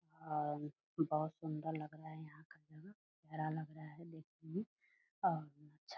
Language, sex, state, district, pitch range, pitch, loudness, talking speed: Hindi, female, Bihar, Purnia, 155-160 Hz, 155 Hz, -44 LUFS, 180 wpm